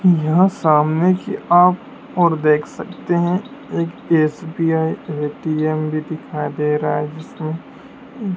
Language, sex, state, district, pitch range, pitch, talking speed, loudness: Hindi, male, Madhya Pradesh, Dhar, 155-180 Hz, 160 Hz, 120 wpm, -18 LUFS